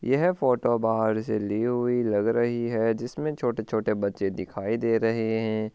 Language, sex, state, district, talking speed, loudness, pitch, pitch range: Hindi, male, Rajasthan, Churu, 190 wpm, -26 LUFS, 115 Hz, 110-120 Hz